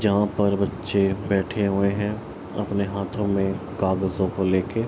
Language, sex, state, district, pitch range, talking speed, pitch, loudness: Hindi, male, Bihar, Araria, 95-100 Hz, 145 wpm, 100 Hz, -24 LUFS